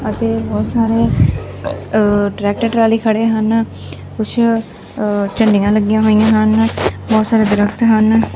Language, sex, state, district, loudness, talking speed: Punjabi, female, Punjab, Fazilka, -14 LUFS, 115 wpm